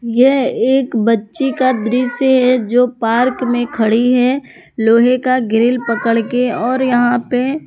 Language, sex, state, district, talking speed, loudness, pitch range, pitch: Hindi, female, Jharkhand, Palamu, 150 wpm, -14 LUFS, 235-255 Hz, 245 Hz